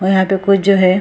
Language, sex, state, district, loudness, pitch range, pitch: Hindi, female, Bihar, Purnia, -13 LUFS, 190-195 Hz, 190 Hz